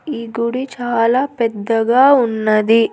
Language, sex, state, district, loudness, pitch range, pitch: Telugu, female, Andhra Pradesh, Annamaya, -15 LUFS, 225-255 Hz, 230 Hz